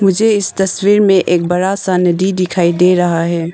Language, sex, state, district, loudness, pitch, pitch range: Hindi, female, Arunachal Pradesh, Longding, -13 LUFS, 185 Hz, 175-195 Hz